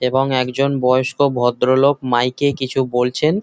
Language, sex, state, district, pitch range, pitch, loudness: Bengali, male, West Bengal, Jhargram, 125-140 Hz, 130 Hz, -17 LUFS